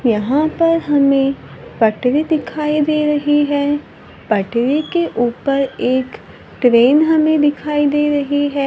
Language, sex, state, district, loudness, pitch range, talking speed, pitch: Hindi, female, Maharashtra, Gondia, -16 LUFS, 260-300 Hz, 125 wpm, 290 Hz